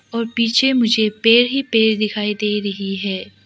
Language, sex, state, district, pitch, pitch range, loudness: Hindi, female, Arunachal Pradesh, Lower Dibang Valley, 215 Hz, 210-230 Hz, -17 LUFS